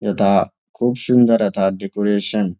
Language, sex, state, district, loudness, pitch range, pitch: Bengali, male, West Bengal, Jalpaiguri, -17 LUFS, 100-120 Hz, 105 Hz